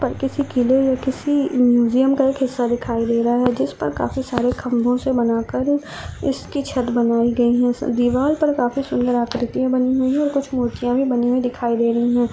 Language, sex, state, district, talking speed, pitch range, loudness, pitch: Hindi, female, Rajasthan, Churu, 205 wpm, 240-265 Hz, -19 LUFS, 250 Hz